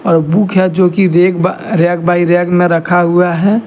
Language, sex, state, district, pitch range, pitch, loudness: Hindi, male, Jharkhand, Deoghar, 175-185 Hz, 175 Hz, -11 LUFS